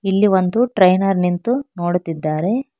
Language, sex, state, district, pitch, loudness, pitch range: Kannada, female, Karnataka, Bangalore, 190 Hz, -17 LUFS, 180-220 Hz